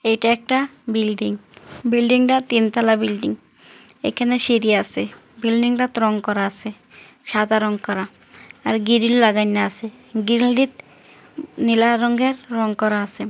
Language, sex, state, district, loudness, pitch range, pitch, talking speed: Bengali, female, West Bengal, Kolkata, -19 LUFS, 215-245 Hz, 225 Hz, 120 wpm